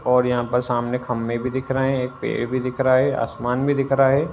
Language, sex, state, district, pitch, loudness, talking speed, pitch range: Hindi, male, Uttar Pradesh, Ghazipur, 125 Hz, -21 LUFS, 275 wpm, 125-135 Hz